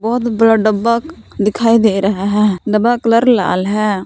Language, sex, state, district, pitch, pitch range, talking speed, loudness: Hindi, female, Jharkhand, Palamu, 215 Hz, 205-230 Hz, 160 wpm, -14 LUFS